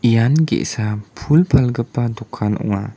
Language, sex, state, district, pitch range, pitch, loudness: Garo, male, Meghalaya, West Garo Hills, 105-130 Hz, 115 Hz, -18 LUFS